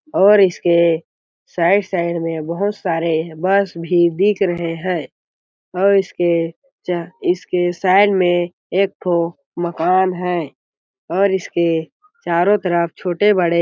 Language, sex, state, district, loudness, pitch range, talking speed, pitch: Hindi, male, Chhattisgarh, Balrampur, -17 LUFS, 170-195 Hz, 125 wpm, 175 Hz